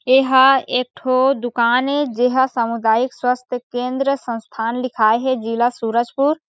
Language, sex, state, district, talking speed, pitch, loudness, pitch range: Chhattisgarhi, female, Chhattisgarh, Sarguja, 140 wpm, 250 Hz, -18 LUFS, 235-260 Hz